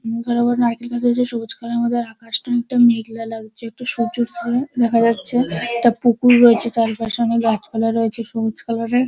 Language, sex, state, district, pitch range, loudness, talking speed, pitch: Bengali, female, West Bengal, Dakshin Dinajpur, 230-240 Hz, -18 LUFS, 200 wpm, 235 Hz